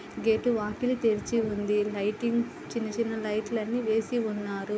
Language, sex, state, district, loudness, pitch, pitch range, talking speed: Telugu, female, Andhra Pradesh, Anantapur, -29 LUFS, 220 Hz, 210-235 Hz, 150 wpm